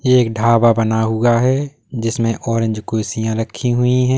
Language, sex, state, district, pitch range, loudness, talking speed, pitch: Hindi, male, Uttar Pradesh, Lalitpur, 110-125 Hz, -17 LUFS, 170 wpm, 115 Hz